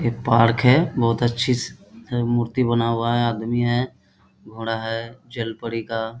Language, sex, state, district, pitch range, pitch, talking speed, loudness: Hindi, male, Bihar, Bhagalpur, 115-120 Hz, 115 Hz, 155 wpm, -21 LUFS